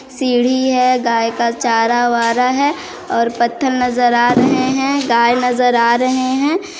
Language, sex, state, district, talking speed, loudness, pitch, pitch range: Hindi, female, Chhattisgarh, Sarguja, 160 wpm, -14 LUFS, 250 Hz, 235-260 Hz